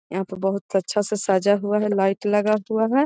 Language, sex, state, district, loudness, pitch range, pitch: Magahi, female, Bihar, Gaya, -22 LUFS, 195-210 Hz, 205 Hz